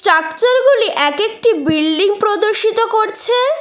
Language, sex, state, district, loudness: Bengali, female, West Bengal, Cooch Behar, -14 LUFS